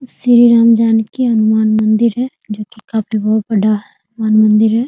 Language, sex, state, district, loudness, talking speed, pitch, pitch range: Hindi, female, Bihar, Muzaffarpur, -12 LUFS, 185 wpm, 220 Hz, 215-230 Hz